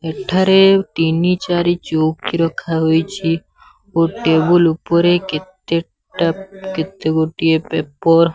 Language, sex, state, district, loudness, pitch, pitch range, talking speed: Odia, male, Odisha, Sambalpur, -16 LUFS, 165 Hz, 160-185 Hz, 100 wpm